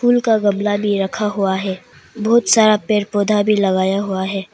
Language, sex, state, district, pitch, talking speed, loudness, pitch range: Hindi, female, Arunachal Pradesh, Papum Pare, 205 Hz, 200 wpm, -16 LUFS, 195-215 Hz